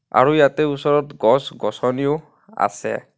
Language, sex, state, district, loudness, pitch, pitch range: Assamese, male, Assam, Kamrup Metropolitan, -19 LUFS, 145 Hz, 140-150 Hz